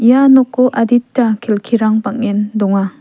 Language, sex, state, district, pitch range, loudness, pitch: Garo, female, Meghalaya, West Garo Hills, 210-245 Hz, -13 LUFS, 230 Hz